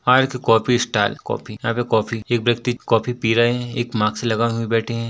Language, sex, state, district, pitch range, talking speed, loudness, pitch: Hindi, male, Chhattisgarh, Korba, 115-120 Hz, 225 wpm, -20 LUFS, 115 Hz